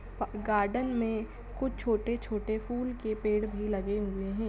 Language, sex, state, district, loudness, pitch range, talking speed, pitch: Hindi, female, Bihar, Saran, -32 LUFS, 210-235 Hz, 145 wpm, 215 Hz